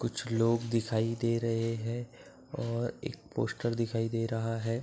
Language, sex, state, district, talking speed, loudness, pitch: Hindi, male, Uttar Pradesh, Budaun, 175 wpm, -32 LUFS, 115 Hz